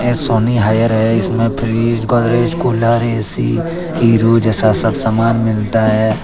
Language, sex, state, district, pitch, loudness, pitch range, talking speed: Hindi, male, Jharkhand, Deoghar, 115 Hz, -14 LUFS, 110-120 Hz, 145 wpm